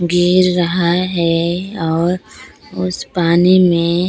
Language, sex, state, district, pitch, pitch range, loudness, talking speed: Hindi, female, Bihar, Katihar, 175 Hz, 170-180 Hz, -15 LUFS, 100 wpm